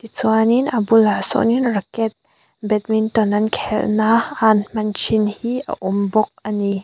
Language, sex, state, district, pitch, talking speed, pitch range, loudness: Mizo, female, Mizoram, Aizawl, 220 Hz, 160 wpm, 210-225 Hz, -18 LUFS